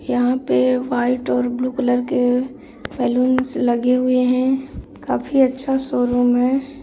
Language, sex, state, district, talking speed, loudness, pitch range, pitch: Hindi, female, Bihar, Bhagalpur, 130 wpm, -19 LUFS, 245-260 Hz, 255 Hz